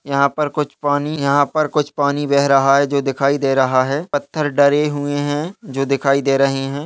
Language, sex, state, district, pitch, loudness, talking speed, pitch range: Hindi, male, Chhattisgarh, Kabirdham, 140 Hz, -17 LUFS, 220 wpm, 140-145 Hz